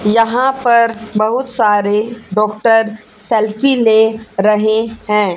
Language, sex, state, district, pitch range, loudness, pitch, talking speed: Hindi, female, Haryana, Charkhi Dadri, 210-230 Hz, -14 LUFS, 220 Hz, 100 wpm